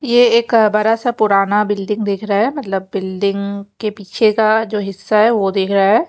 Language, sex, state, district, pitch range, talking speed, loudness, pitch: Hindi, female, Chandigarh, Chandigarh, 200-220 Hz, 215 wpm, -15 LUFS, 210 Hz